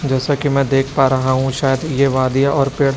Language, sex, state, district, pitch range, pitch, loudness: Hindi, male, Chhattisgarh, Raipur, 130-140 Hz, 135 Hz, -16 LUFS